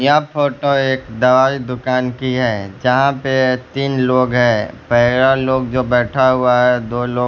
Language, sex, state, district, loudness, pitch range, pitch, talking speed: Hindi, male, Bihar, West Champaran, -15 LUFS, 125-130 Hz, 130 Hz, 165 wpm